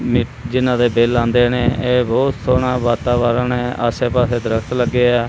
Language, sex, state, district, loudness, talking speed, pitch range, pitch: Punjabi, male, Punjab, Kapurthala, -16 LUFS, 170 wpm, 120-125 Hz, 120 Hz